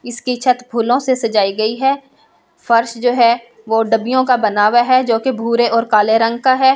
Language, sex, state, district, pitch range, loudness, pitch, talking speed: Hindi, female, Delhi, New Delhi, 225-255 Hz, -15 LUFS, 235 Hz, 220 wpm